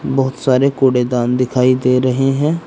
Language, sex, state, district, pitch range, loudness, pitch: Hindi, male, Uttar Pradesh, Saharanpur, 125-135 Hz, -15 LUFS, 130 Hz